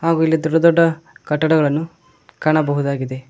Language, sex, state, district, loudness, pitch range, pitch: Kannada, male, Karnataka, Koppal, -17 LUFS, 150-165 Hz, 160 Hz